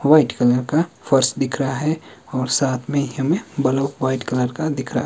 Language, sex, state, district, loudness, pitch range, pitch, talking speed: Hindi, male, Himachal Pradesh, Shimla, -20 LUFS, 130-150 Hz, 135 Hz, 235 wpm